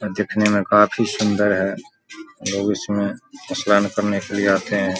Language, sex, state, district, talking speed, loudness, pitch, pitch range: Hindi, male, Bihar, Vaishali, 170 wpm, -20 LUFS, 105 Hz, 100-105 Hz